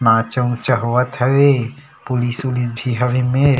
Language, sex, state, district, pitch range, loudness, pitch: Chhattisgarhi, male, Chhattisgarh, Sarguja, 120-130 Hz, -17 LUFS, 125 Hz